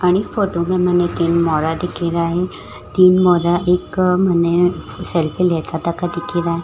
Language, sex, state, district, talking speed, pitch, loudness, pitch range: Marwari, female, Rajasthan, Churu, 145 wpm, 175 Hz, -17 LUFS, 170-180 Hz